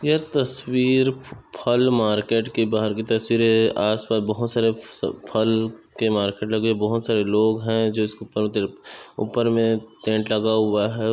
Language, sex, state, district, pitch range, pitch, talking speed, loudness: Hindi, male, Chhattisgarh, Raigarh, 110-115 Hz, 110 Hz, 170 wpm, -22 LUFS